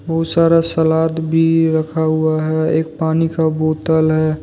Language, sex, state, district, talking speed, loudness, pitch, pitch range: Hindi, male, Jharkhand, Deoghar, 150 wpm, -16 LUFS, 160 Hz, 155-165 Hz